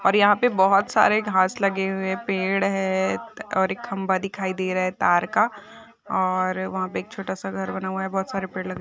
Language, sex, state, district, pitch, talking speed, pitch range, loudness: Hindi, female, Maharashtra, Sindhudurg, 190 Hz, 225 wpm, 185-195 Hz, -23 LUFS